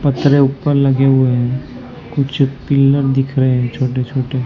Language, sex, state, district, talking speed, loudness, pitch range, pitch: Hindi, male, Maharashtra, Mumbai Suburban, 160 wpm, -15 LUFS, 130-140 Hz, 135 Hz